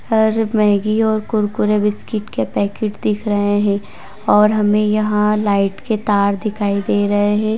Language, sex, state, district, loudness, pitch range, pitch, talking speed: Hindi, female, Uttar Pradesh, Varanasi, -17 LUFS, 205-215 Hz, 210 Hz, 160 wpm